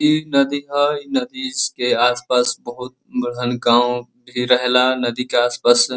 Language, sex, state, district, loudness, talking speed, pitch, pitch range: Bhojpuri, male, Uttar Pradesh, Deoria, -18 LUFS, 150 wpm, 125 Hz, 120-140 Hz